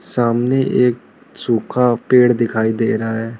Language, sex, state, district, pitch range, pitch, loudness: Hindi, male, Arunachal Pradesh, Lower Dibang Valley, 115-125 Hz, 120 Hz, -16 LUFS